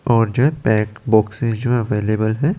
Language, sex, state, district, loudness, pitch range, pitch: Hindi, male, Chandigarh, Chandigarh, -18 LUFS, 110-120 Hz, 115 Hz